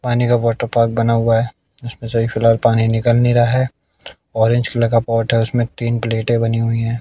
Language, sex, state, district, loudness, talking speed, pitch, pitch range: Hindi, male, Haryana, Jhajjar, -16 LUFS, 215 wpm, 115 Hz, 115-120 Hz